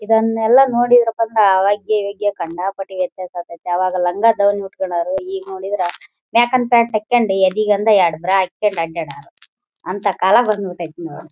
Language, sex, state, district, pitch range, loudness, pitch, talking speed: Kannada, female, Karnataka, Raichur, 180-220 Hz, -17 LUFS, 195 Hz, 110 wpm